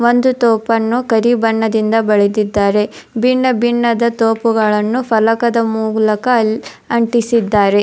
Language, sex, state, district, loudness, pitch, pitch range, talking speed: Kannada, female, Karnataka, Dharwad, -14 LUFS, 225 Hz, 220-235 Hz, 90 wpm